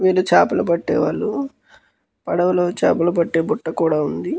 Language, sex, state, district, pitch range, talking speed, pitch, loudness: Telugu, male, Andhra Pradesh, Krishna, 165-185 Hz, 135 wpm, 175 Hz, -19 LUFS